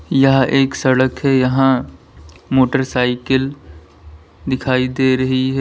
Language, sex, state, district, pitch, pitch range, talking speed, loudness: Hindi, male, Uttar Pradesh, Lalitpur, 130 Hz, 125-135 Hz, 105 wpm, -16 LUFS